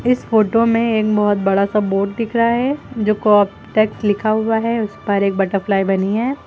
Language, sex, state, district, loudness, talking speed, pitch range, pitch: Hindi, female, Uttar Pradesh, Lucknow, -17 LUFS, 215 wpm, 200-230 Hz, 215 Hz